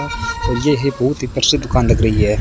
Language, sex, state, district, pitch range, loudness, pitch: Hindi, male, Rajasthan, Bikaner, 115-140 Hz, -16 LUFS, 130 Hz